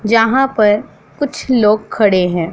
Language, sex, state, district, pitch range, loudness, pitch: Hindi, female, Punjab, Pathankot, 205-255 Hz, -14 LUFS, 215 Hz